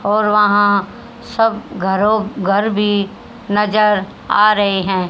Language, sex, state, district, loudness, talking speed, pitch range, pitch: Hindi, female, Haryana, Rohtak, -15 LUFS, 115 wpm, 200-215 Hz, 210 Hz